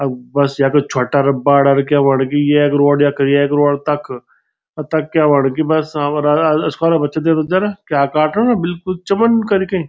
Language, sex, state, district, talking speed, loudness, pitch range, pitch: Garhwali, male, Uttarakhand, Tehri Garhwal, 175 wpm, -14 LUFS, 140-160 Hz, 145 Hz